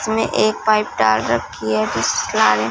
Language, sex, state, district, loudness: Hindi, female, Punjab, Fazilka, -18 LUFS